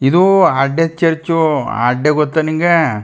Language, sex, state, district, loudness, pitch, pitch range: Kannada, male, Karnataka, Chamarajanagar, -14 LUFS, 160 Hz, 135-165 Hz